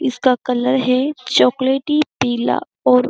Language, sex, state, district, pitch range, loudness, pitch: Hindi, female, Uttar Pradesh, Jyotiba Phule Nagar, 250-270 Hz, -17 LUFS, 255 Hz